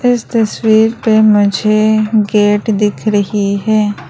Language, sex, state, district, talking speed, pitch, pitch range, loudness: Hindi, female, Arunachal Pradesh, Lower Dibang Valley, 115 wpm, 215 Hz, 205-220 Hz, -12 LUFS